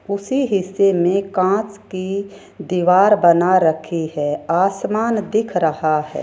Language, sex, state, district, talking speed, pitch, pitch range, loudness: Hindi, female, Rajasthan, Jaipur, 125 wpm, 190 Hz, 170-200 Hz, -17 LUFS